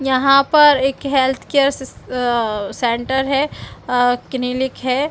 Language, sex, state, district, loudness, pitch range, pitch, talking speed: Hindi, female, Chhattisgarh, Bilaspur, -17 LUFS, 250-275 Hz, 265 Hz, 155 wpm